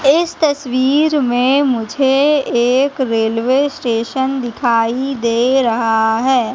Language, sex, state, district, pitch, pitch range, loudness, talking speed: Hindi, female, Madhya Pradesh, Katni, 255 Hz, 235-275 Hz, -15 LUFS, 100 wpm